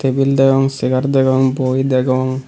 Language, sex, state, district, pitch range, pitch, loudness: Chakma, male, Tripura, Unakoti, 130-135 Hz, 130 Hz, -15 LUFS